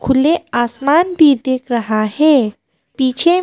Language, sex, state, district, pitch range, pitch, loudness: Hindi, female, Arunachal Pradesh, Papum Pare, 240-310 Hz, 265 Hz, -14 LUFS